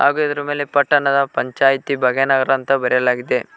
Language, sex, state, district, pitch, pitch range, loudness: Kannada, male, Karnataka, Koppal, 135 Hz, 130-145 Hz, -17 LUFS